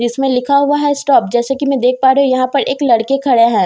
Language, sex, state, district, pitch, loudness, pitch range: Hindi, female, Bihar, Katihar, 270 Hz, -13 LUFS, 250-280 Hz